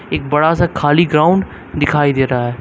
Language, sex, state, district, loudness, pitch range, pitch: Hindi, male, Uttar Pradesh, Lucknow, -14 LUFS, 140-165 Hz, 150 Hz